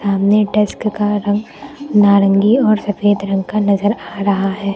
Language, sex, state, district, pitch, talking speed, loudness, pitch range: Hindi, female, Uttar Pradesh, Lucknow, 205 Hz, 165 wpm, -15 LUFS, 200-210 Hz